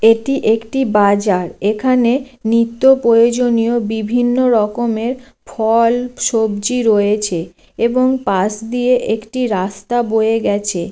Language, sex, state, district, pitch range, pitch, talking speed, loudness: Bengali, female, West Bengal, Jalpaiguri, 210-245 Hz, 230 Hz, 100 wpm, -15 LUFS